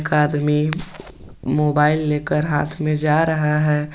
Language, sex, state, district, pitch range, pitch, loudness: Hindi, male, Jharkhand, Garhwa, 150-155 Hz, 150 Hz, -19 LUFS